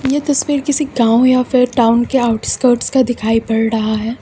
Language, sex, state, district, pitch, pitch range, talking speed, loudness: Hindi, female, Uttar Pradesh, Lucknow, 245 Hz, 230-265 Hz, 200 wpm, -14 LUFS